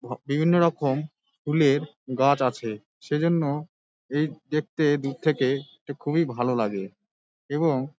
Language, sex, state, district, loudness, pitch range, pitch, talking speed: Bengali, male, West Bengal, Dakshin Dinajpur, -25 LUFS, 130-155 Hz, 145 Hz, 120 wpm